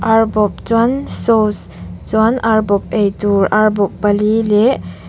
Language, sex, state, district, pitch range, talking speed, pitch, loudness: Mizo, female, Mizoram, Aizawl, 200-225 Hz, 155 wpm, 210 Hz, -14 LUFS